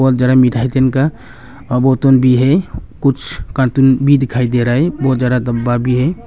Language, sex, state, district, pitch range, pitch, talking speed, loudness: Hindi, male, Arunachal Pradesh, Longding, 125-135 Hz, 130 Hz, 170 wpm, -13 LUFS